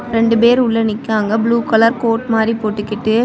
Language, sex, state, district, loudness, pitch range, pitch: Tamil, female, Tamil Nadu, Kanyakumari, -15 LUFS, 220-230 Hz, 225 Hz